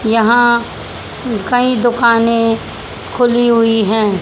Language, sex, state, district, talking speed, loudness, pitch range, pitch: Hindi, female, Haryana, Jhajjar, 85 wpm, -13 LUFS, 225-240 Hz, 230 Hz